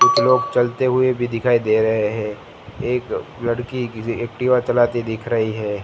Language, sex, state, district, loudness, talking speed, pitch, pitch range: Hindi, male, Gujarat, Gandhinagar, -20 LUFS, 165 wpm, 120 Hz, 110-125 Hz